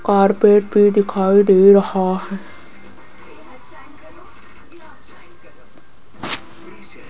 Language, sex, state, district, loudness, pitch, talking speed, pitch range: Hindi, female, Rajasthan, Jaipur, -14 LUFS, 195 Hz, 60 wpm, 185-205 Hz